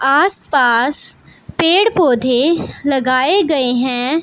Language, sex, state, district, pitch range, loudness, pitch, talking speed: Hindi, female, Punjab, Pathankot, 255-340 Hz, -14 LUFS, 275 Hz, 85 wpm